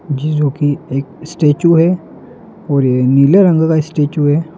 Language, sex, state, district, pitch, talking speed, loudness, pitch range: Hindi, male, Madhya Pradesh, Dhar, 155 Hz, 170 wpm, -13 LUFS, 145-170 Hz